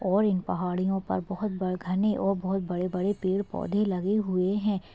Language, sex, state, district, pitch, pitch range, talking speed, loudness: Hindi, female, Uttarakhand, Tehri Garhwal, 190 Hz, 185-205 Hz, 180 wpm, -28 LUFS